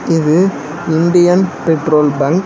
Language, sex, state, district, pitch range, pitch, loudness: Tamil, male, Tamil Nadu, Chennai, 155-175 Hz, 165 Hz, -13 LUFS